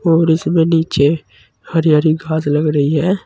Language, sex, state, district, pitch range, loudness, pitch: Hindi, male, Uttar Pradesh, Saharanpur, 145-165 Hz, -15 LUFS, 155 Hz